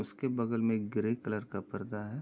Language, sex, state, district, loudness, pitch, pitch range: Hindi, male, Uttar Pradesh, Jyotiba Phule Nagar, -34 LUFS, 110 Hz, 105-115 Hz